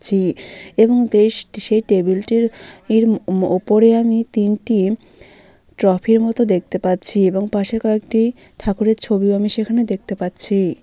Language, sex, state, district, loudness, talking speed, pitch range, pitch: Bengali, female, West Bengal, Malda, -16 LUFS, 125 wpm, 195-225 Hz, 210 Hz